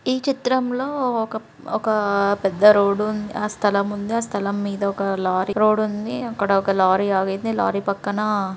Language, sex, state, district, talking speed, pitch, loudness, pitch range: Telugu, male, Andhra Pradesh, Chittoor, 170 wpm, 205 Hz, -21 LUFS, 200-220 Hz